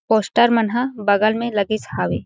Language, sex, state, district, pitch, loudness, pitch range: Chhattisgarhi, female, Chhattisgarh, Jashpur, 215 Hz, -18 LUFS, 200-230 Hz